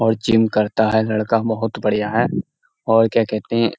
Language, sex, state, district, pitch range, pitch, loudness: Hindi, male, Uttar Pradesh, Jyotiba Phule Nagar, 110-115 Hz, 115 Hz, -18 LUFS